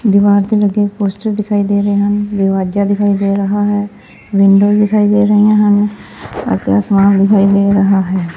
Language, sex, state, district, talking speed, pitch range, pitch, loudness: Punjabi, female, Punjab, Fazilka, 180 wpm, 195-205 Hz, 200 Hz, -12 LUFS